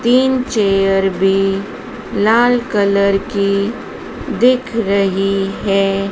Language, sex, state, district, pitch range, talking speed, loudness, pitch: Hindi, female, Madhya Pradesh, Dhar, 195-230 Hz, 90 wpm, -15 LUFS, 200 Hz